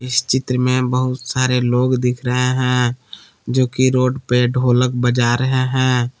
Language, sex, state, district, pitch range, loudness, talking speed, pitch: Hindi, male, Jharkhand, Palamu, 125-130 Hz, -17 LUFS, 155 wpm, 125 Hz